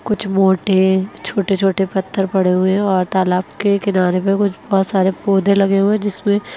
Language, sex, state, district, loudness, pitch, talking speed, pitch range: Hindi, female, Bihar, Lakhisarai, -16 LUFS, 195 Hz, 210 wpm, 190-200 Hz